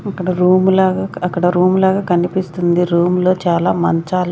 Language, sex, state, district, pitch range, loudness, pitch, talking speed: Telugu, female, Andhra Pradesh, Sri Satya Sai, 175-190 Hz, -15 LUFS, 180 Hz, 165 wpm